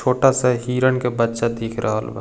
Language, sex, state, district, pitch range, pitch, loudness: Bhojpuri, male, Bihar, East Champaran, 115-125 Hz, 125 Hz, -19 LUFS